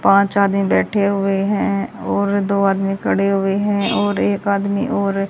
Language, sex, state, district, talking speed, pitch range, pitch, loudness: Hindi, female, Haryana, Jhajjar, 170 wpm, 195-200 Hz, 200 Hz, -18 LUFS